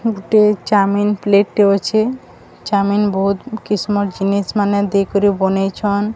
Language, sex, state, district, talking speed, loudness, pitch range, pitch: Odia, female, Odisha, Sambalpur, 105 wpm, -16 LUFS, 200-210 Hz, 205 Hz